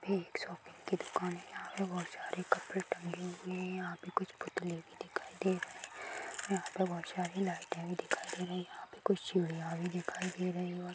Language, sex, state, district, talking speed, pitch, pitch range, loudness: Hindi, female, Bihar, Gopalganj, 230 wpm, 180 Hz, 175-185 Hz, -39 LUFS